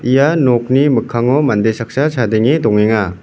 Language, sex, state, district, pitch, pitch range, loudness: Garo, male, Meghalaya, West Garo Hills, 120 Hz, 110-140 Hz, -13 LUFS